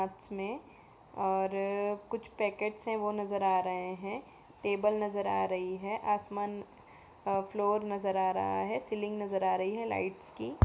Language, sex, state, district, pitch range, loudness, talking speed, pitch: Hindi, female, Uttar Pradesh, Jyotiba Phule Nagar, 190-210 Hz, -34 LUFS, 160 wpm, 200 Hz